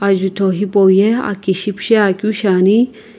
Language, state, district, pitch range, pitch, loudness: Sumi, Nagaland, Kohima, 190-215 Hz, 200 Hz, -14 LUFS